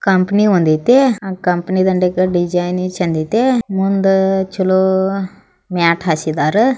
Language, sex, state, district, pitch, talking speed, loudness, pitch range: Kannada, female, Karnataka, Belgaum, 190 Hz, 105 wpm, -15 LUFS, 180-195 Hz